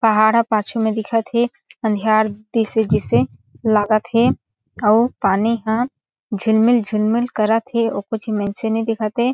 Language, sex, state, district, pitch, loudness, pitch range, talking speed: Chhattisgarhi, female, Chhattisgarh, Sarguja, 220 Hz, -18 LUFS, 215-230 Hz, 155 wpm